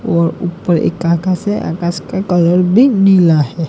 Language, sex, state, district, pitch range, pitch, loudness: Hindi, male, Gujarat, Gandhinagar, 170-190 Hz, 175 Hz, -13 LUFS